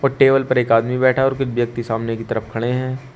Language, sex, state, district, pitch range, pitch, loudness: Hindi, male, Uttar Pradesh, Shamli, 115-135 Hz, 125 Hz, -18 LUFS